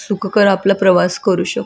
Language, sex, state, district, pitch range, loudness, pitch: Marathi, female, Maharashtra, Solapur, 185-205 Hz, -14 LUFS, 195 Hz